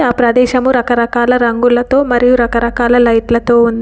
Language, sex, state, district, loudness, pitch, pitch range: Telugu, female, Telangana, Komaram Bheem, -11 LUFS, 240 Hz, 235-245 Hz